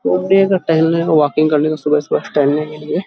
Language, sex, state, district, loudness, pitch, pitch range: Hindi, male, Uttar Pradesh, Hamirpur, -15 LUFS, 155 Hz, 150-170 Hz